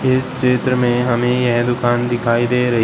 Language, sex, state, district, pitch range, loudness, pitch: Hindi, male, Uttar Pradesh, Shamli, 120-125 Hz, -16 LUFS, 120 Hz